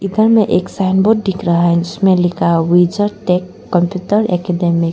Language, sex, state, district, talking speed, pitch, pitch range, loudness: Hindi, female, Arunachal Pradesh, Lower Dibang Valley, 195 wpm, 180 Hz, 175-205 Hz, -14 LUFS